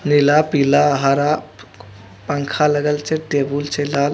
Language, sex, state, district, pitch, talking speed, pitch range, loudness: Hindi, male, Bihar, Begusarai, 145 Hz, 130 wpm, 140-150 Hz, -17 LUFS